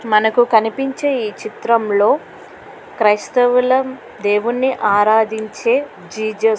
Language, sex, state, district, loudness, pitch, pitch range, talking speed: Telugu, female, Andhra Pradesh, Krishna, -16 LUFS, 225 Hz, 215-255 Hz, 80 wpm